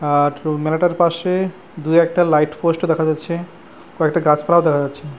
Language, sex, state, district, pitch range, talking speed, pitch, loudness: Bengali, male, West Bengal, Purulia, 150-170 Hz, 175 wpm, 160 Hz, -17 LUFS